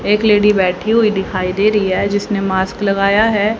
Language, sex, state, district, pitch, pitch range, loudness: Hindi, female, Haryana, Rohtak, 205 Hz, 195-210 Hz, -14 LUFS